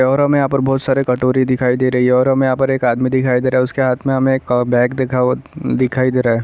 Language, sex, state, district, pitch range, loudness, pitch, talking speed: Hindi, male, Chhattisgarh, Sarguja, 125-135 Hz, -15 LUFS, 130 Hz, 280 wpm